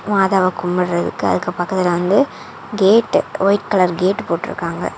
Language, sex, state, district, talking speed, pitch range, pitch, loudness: Tamil, female, Tamil Nadu, Kanyakumari, 120 wpm, 180-205 Hz, 190 Hz, -17 LUFS